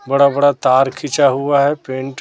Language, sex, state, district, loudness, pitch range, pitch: Hindi, male, Chhattisgarh, Raipur, -15 LUFS, 130-145 Hz, 140 Hz